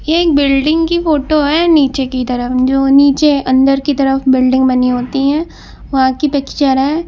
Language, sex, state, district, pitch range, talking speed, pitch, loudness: Hindi, female, Uttar Pradesh, Lucknow, 260-300 Hz, 185 wpm, 275 Hz, -12 LUFS